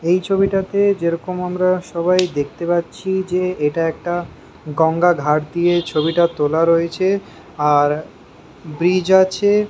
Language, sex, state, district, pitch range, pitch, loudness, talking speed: Bengali, male, West Bengal, Kolkata, 160-185 Hz, 175 Hz, -18 LUFS, 125 wpm